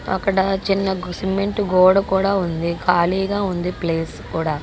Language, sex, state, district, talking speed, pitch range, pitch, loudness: Telugu, female, Andhra Pradesh, Guntur, 115 wpm, 175-195 Hz, 190 Hz, -19 LUFS